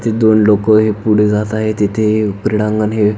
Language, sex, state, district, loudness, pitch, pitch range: Marathi, male, Maharashtra, Pune, -13 LUFS, 105 Hz, 105-110 Hz